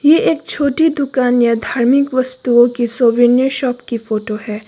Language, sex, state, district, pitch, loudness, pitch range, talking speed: Hindi, female, Sikkim, Gangtok, 245 Hz, -14 LUFS, 235-275 Hz, 155 wpm